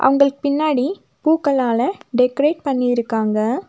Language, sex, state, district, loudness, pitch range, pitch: Tamil, female, Tamil Nadu, Nilgiris, -18 LUFS, 245-300 Hz, 270 Hz